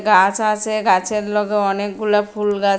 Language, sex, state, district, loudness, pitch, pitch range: Bengali, female, Tripura, West Tripura, -18 LUFS, 210 Hz, 200-210 Hz